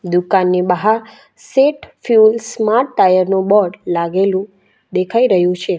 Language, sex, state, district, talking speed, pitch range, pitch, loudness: Gujarati, female, Gujarat, Valsad, 125 wpm, 185-225 Hz, 195 Hz, -14 LUFS